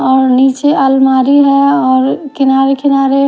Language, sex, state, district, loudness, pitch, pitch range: Hindi, female, Haryana, Jhajjar, -10 LUFS, 270 Hz, 265-275 Hz